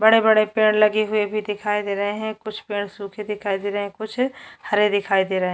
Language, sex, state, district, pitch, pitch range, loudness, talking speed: Hindi, female, Chhattisgarh, Jashpur, 210 Hz, 205-215 Hz, -21 LUFS, 250 wpm